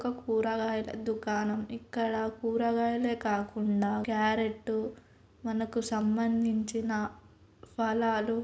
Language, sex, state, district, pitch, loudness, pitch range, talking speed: Telugu, female, Telangana, Karimnagar, 225 Hz, -31 LUFS, 215-230 Hz, 70 wpm